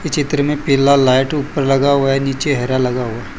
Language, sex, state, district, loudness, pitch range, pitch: Hindi, male, Gujarat, Valsad, -15 LUFS, 130-145 Hz, 135 Hz